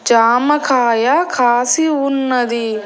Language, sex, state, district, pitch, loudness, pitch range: Telugu, female, Andhra Pradesh, Annamaya, 250 Hz, -14 LUFS, 235-275 Hz